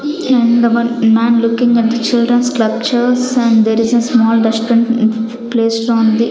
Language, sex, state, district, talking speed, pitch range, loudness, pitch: English, female, Chandigarh, Chandigarh, 135 wpm, 225-240 Hz, -12 LUFS, 235 Hz